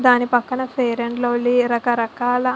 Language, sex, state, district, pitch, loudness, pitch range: Telugu, female, Andhra Pradesh, Visakhapatnam, 245 Hz, -19 LUFS, 240-250 Hz